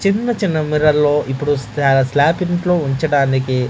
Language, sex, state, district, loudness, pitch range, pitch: Telugu, male, Andhra Pradesh, Manyam, -16 LUFS, 135-175 Hz, 145 Hz